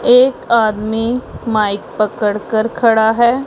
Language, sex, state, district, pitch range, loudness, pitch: Hindi, female, Punjab, Pathankot, 215-235 Hz, -15 LUFS, 225 Hz